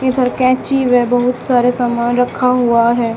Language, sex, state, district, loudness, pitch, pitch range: Hindi, female, Haryana, Charkhi Dadri, -14 LUFS, 245 Hz, 240-255 Hz